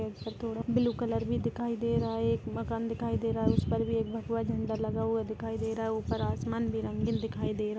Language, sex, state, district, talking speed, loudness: Hindi, female, Chhattisgarh, Jashpur, 275 wpm, -32 LUFS